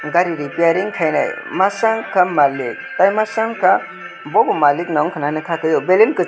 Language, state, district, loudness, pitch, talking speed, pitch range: Kokborok, Tripura, West Tripura, -17 LUFS, 175 Hz, 180 wpm, 155-190 Hz